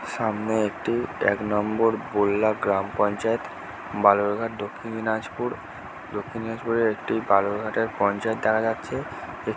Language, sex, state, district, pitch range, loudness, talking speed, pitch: Bengali, male, West Bengal, Dakshin Dinajpur, 105-115 Hz, -25 LUFS, 105 wpm, 110 Hz